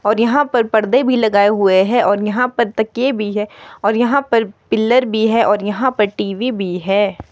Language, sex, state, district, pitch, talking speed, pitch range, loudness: Hindi, female, Himachal Pradesh, Shimla, 220 Hz, 215 wpm, 205-240 Hz, -15 LUFS